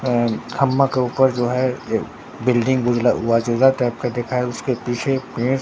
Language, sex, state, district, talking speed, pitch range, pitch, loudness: Hindi, male, Bihar, Katihar, 150 wpm, 120-130 Hz, 125 Hz, -19 LUFS